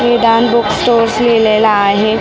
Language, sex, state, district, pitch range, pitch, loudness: Marathi, female, Maharashtra, Mumbai Suburban, 215-235 Hz, 225 Hz, -11 LUFS